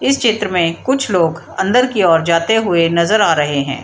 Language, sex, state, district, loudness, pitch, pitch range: Hindi, female, Bihar, Samastipur, -14 LUFS, 175 Hz, 165-225 Hz